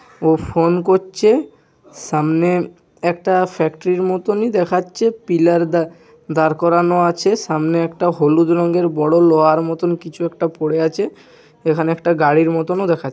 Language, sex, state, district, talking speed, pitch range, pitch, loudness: Bengali, male, West Bengal, Purulia, 135 wpm, 160-180 Hz, 170 Hz, -16 LUFS